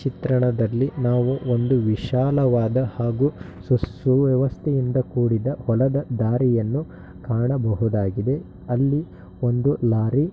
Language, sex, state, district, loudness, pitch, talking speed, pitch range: Kannada, male, Karnataka, Shimoga, -22 LUFS, 125 Hz, 85 wpm, 115-135 Hz